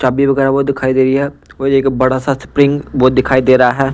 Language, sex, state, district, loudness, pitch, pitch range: Hindi, male, Punjab, Pathankot, -13 LUFS, 135 Hz, 130-140 Hz